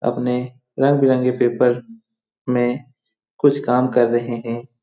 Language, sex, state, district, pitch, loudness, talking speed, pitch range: Hindi, male, Bihar, Saran, 125 Hz, -19 LUFS, 110 wpm, 120-130 Hz